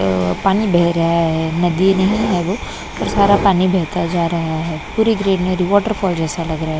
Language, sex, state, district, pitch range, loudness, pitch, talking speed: Hindi, female, Maharashtra, Mumbai Suburban, 165-195 Hz, -16 LUFS, 180 Hz, 195 wpm